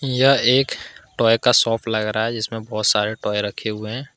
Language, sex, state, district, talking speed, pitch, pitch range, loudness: Hindi, male, Jharkhand, Ranchi, 230 wpm, 115 Hz, 110-125 Hz, -19 LUFS